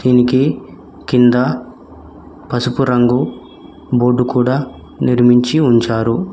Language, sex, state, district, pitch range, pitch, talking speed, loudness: Telugu, male, Telangana, Mahabubabad, 120-130 Hz, 125 Hz, 75 wpm, -14 LUFS